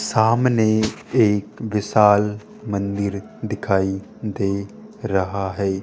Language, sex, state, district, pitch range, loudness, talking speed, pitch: Hindi, male, Rajasthan, Jaipur, 100-110 Hz, -21 LUFS, 80 wpm, 105 Hz